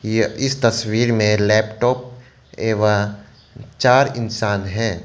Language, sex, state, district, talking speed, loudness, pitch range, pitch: Hindi, male, Arunachal Pradesh, Lower Dibang Valley, 105 wpm, -18 LUFS, 105-125 Hz, 110 Hz